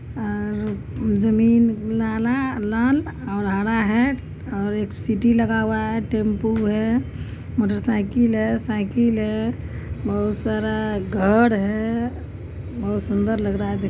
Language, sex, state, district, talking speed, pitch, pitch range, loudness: Maithili, female, Bihar, Supaul, 120 wpm, 220 Hz, 200-225 Hz, -22 LUFS